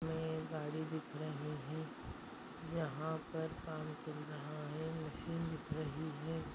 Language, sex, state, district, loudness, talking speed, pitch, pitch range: Hindi, female, Chhattisgarh, Bastar, -44 LUFS, 135 wpm, 155 Hz, 150-160 Hz